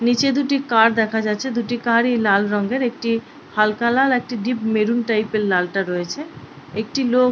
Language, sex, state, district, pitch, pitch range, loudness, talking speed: Bengali, female, West Bengal, Paschim Medinipur, 230 Hz, 210-245 Hz, -19 LUFS, 195 wpm